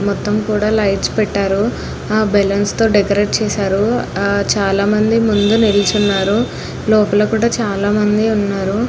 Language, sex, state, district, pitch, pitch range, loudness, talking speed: Telugu, female, Andhra Pradesh, Anantapur, 210 Hz, 200-215 Hz, -15 LUFS, 120 wpm